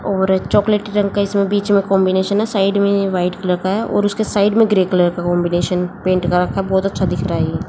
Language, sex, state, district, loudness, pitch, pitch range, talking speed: Hindi, female, Haryana, Jhajjar, -16 LUFS, 190 Hz, 180-200 Hz, 240 wpm